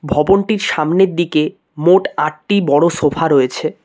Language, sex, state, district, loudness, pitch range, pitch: Bengali, male, West Bengal, Cooch Behar, -15 LUFS, 150-190 Hz, 165 Hz